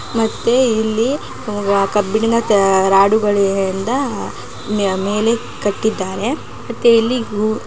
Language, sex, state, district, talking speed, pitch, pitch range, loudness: Kannada, female, Karnataka, Mysore, 70 wpm, 215 Hz, 200-230 Hz, -16 LUFS